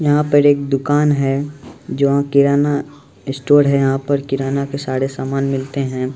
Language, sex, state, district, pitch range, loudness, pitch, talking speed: Maithili, male, Bihar, Supaul, 135-145 Hz, -16 LUFS, 140 Hz, 165 wpm